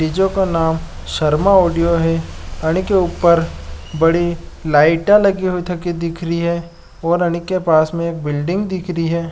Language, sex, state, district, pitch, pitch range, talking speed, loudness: Marwari, male, Rajasthan, Nagaur, 170 Hz, 165-180 Hz, 165 wpm, -17 LUFS